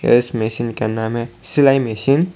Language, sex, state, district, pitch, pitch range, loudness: Hindi, male, Tripura, Dhalai, 120 Hz, 110-135 Hz, -18 LUFS